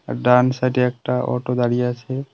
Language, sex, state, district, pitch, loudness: Bengali, male, West Bengal, Cooch Behar, 125 Hz, -19 LUFS